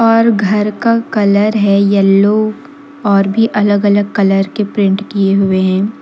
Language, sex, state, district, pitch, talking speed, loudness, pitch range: Hindi, female, Jharkhand, Deoghar, 205 Hz, 160 wpm, -12 LUFS, 200-215 Hz